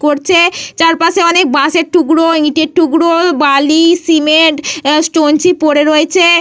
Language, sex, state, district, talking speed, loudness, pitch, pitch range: Bengali, female, Jharkhand, Jamtara, 120 wpm, -10 LUFS, 325 Hz, 300-340 Hz